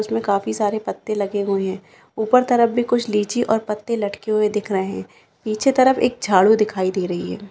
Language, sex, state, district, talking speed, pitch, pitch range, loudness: Hindi, female, Bihar, Madhepura, 225 wpm, 210 Hz, 200-230 Hz, -20 LUFS